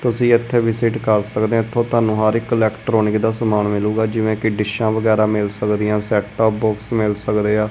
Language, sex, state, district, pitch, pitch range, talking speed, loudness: Punjabi, male, Punjab, Kapurthala, 110 Hz, 105-115 Hz, 220 wpm, -18 LUFS